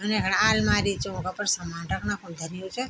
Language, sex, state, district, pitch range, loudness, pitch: Garhwali, female, Uttarakhand, Tehri Garhwal, 165-195 Hz, -26 LUFS, 180 Hz